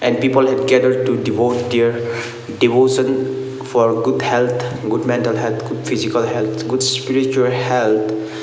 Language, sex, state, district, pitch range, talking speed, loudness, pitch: English, male, Sikkim, Gangtok, 115-130 Hz, 140 wpm, -17 LUFS, 125 Hz